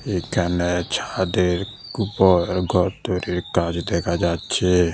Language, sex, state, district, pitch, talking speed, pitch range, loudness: Bengali, male, Tripura, West Tripura, 90 Hz, 95 wpm, 85-95 Hz, -21 LUFS